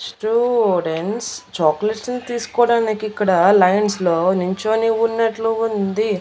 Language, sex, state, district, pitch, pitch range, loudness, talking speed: Telugu, female, Andhra Pradesh, Annamaya, 215 Hz, 190-225 Hz, -18 LUFS, 95 wpm